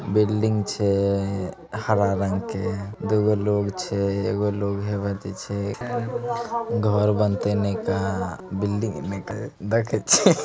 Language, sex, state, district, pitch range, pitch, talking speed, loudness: Angika, male, Bihar, Begusarai, 100-105 Hz, 100 Hz, 110 wpm, -24 LUFS